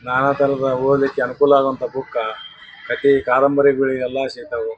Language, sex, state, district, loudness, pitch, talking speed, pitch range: Kannada, male, Karnataka, Bijapur, -18 LUFS, 135 Hz, 125 wpm, 130-140 Hz